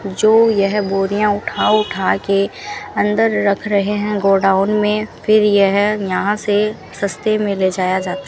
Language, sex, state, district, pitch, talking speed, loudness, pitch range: Hindi, female, Rajasthan, Bikaner, 205 Hz, 160 wpm, -16 LUFS, 195-210 Hz